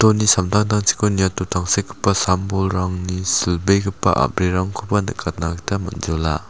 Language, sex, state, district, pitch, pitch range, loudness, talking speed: Garo, male, Meghalaya, South Garo Hills, 95 Hz, 90-100 Hz, -19 LUFS, 85 wpm